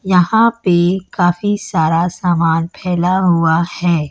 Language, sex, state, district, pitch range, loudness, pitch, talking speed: Hindi, female, Chhattisgarh, Raipur, 170-185 Hz, -15 LUFS, 175 Hz, 115 wpm